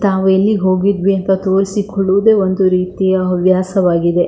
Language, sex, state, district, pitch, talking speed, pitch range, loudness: Kannada, female, Karnataka, Shimoga, 190 Hz, 110 wpm, 185-195 Hz, -14 LUFS